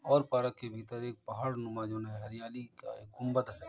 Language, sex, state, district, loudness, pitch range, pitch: Hindi, male, Uttar Pradesh, Jalaun, -37 LUFS, 110-125 Hz, 120 Hz